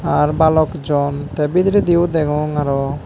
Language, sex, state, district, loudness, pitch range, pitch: Chakma, male, Tripura, Unakoti, -16 LUFS, 145-160 Hz, 150 Hz